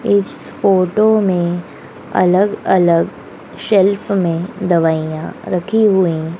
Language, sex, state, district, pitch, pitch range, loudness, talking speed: Hindi, female, Madhya Pradesh, Dhar, 185 Hz, 170-200 Hz, -15 LUFS, 95 wpm